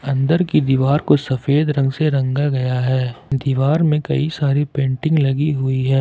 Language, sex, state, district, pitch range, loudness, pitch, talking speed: Hindi, male, Jharkhand, Ranchi, 130-150 Hz, -18 LUFS, 140 Hz, 180 wpm